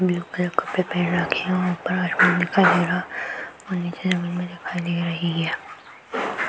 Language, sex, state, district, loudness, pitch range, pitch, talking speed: Hindi, female, Uttar Pradesh, Hamirpur, -23 LUFS, 175-180 Hz, 180 Hz, 185 wpm